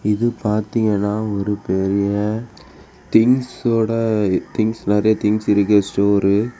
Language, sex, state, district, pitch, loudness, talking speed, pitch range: Tamil, male, Tamil Nadu, Kanyakumari, 105 Hz, -18 LUFS, 110 wpm, 100-110 Hz